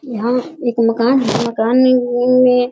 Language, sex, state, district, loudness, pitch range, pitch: Hindi, female, Bihar, Sitamarhi, -14 LUFS, 235-255 Hz, 245 Hz